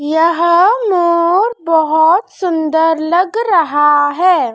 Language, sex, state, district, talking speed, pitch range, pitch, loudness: Hindi, female, Madhya Pradesh, Dhar, 90 wpm, 315-365 Hz, 340 Hz, -12 LUFS